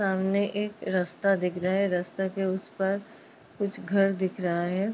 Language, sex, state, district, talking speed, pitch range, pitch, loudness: Hindi, female, Uttar Pradesh, Ghazipur, 180 wpm, 185-200 Hz, 195 Hz, -28 LUFS